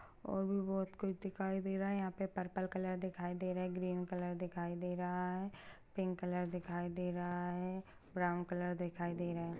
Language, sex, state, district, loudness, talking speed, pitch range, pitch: Hindi, female, Uttar Pradesh, Ghazipur, -41 LUFS, 215 wpm, 175-190 Hz, 180 Hz